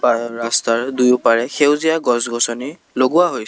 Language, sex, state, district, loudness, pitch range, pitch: Assamese, male, Assam, Kamrup Metropolitan, -16 LUFS, 115-130 Hz, 120 Hz